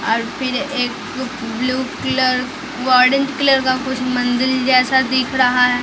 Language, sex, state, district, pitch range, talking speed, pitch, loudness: Hindi, female, Bihar, Patna, 250-265 Hz, 125 wpm, 255 Hz, -17 LUFS